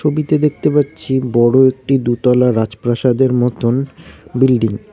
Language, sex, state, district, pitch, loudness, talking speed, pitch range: Bengali, male, West Bengal, Cooch Behar, 130 Hz, -14 LUFS, 120 wpm, 120-135 Hz